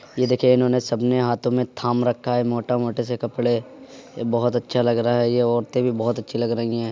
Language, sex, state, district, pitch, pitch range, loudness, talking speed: Hindi, male, Uttar Pradesh, Muzaffarnagar, 120 Hz, 120-125 Hz, -21 LUFS, 240 wpm